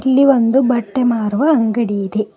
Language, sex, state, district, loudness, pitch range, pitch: Kannada, female, Karnataka, Bidar, -15 LUFS, 215-265 Hz, 240 Hz